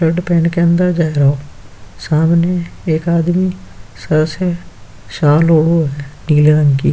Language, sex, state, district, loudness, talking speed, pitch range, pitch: Hindi, male, Uttar Pradesh, Jyotiba Phule Nagar, -14 LUFS, 145 wpm, 135-170 Hz, 155 Hz